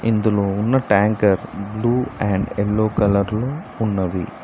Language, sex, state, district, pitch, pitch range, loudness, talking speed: Telugu, male, Telangana, Mahabubabad, 105 Hz, 100-110 Hz, -20 LUFS, 120 wpm